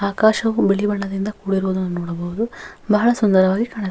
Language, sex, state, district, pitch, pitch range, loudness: Kannada, female, Karnataka, Bellary, 200 Hz, 190-215 Hz, -19 LUFS